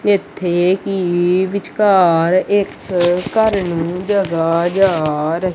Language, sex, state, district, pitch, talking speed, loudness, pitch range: Punjabi, male, Punjab, Kapurthala, 185 Hz, 95 wpm, -16 LUFS, 175-195 Hz